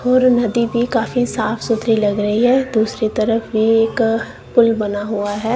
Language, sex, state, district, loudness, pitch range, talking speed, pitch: Hindi, female, Punjab, Kapurthala, -17 LUFS, 220-235 Hz, 185 wpm, 225 Hz